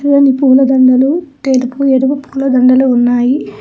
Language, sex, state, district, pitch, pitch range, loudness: Telugu, female, Telangana, Hyderabad, 265 Hz, 255-275 Hz, -10 LUFS